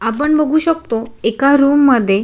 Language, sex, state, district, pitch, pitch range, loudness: Marathi, female, Maharashtra, Sindhudurg, 275 Hz, 225-300 Hz, -14 LUFS